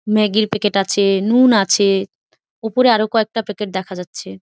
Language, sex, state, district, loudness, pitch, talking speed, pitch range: Bengali, female, West Bengal, Malda, -16 LUFS, 210 Hz, 165 wpm, 195-220 Hz